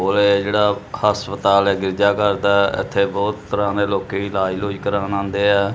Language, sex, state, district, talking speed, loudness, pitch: Punjabi, male, Punjab, Kapurthala, 165 wpm, -18 LUFS, 100 Hz